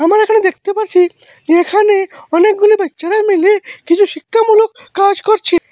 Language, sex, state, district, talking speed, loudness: Bengali, male, Assam, Hailakandi, 135 wpm, -12 LUFS